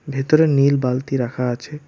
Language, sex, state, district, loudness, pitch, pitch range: Bengali, male, West Bengal, Alipurduar, -18 LUFS, 135 Hz, 125-145 Hz